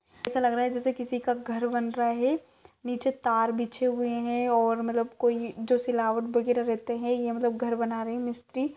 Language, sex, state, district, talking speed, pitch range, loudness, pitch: Hindi, female, Maharashtra, Solapur, 200 wpm, 235-245 Hz, -28 LUFS, 240 Hz